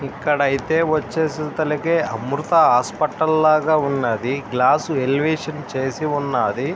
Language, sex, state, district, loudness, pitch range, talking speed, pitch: Telugu, male, Andhra Pradesh, Srikakulam, -19 LUFS, 135-155 Hz, 90 wpm, 150 Hz